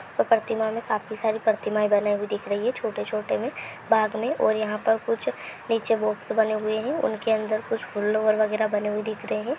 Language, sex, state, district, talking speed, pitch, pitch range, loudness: Hindi, female, Bihar, Purnia, 190 wpm, 215 Hz, 215-225 Hz, -25 LUFS